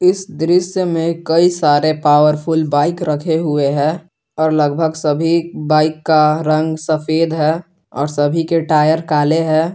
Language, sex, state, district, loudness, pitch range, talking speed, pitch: Hindi, male, Jharkhand, Garhwa, -15 LUFS, 150-165 Hz, 150 wpm, 155 Hz